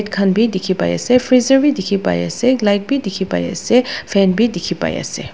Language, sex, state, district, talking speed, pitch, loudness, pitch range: Nagamese, female, Nagaland, Dimapur, 225 wpm, 200 Hz, -16 LUFS, 190-250 Hz